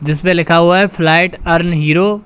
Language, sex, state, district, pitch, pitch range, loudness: Hindi, male, Uttar Pradesh, Shamli, 170 Hz, 160-185 Hz, -12 LUFS